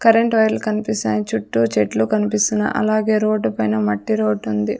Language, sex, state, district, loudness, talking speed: Telugu, female, Andhra Pradesh, Sri Satya Sai, -18 LUFS, 150 wpm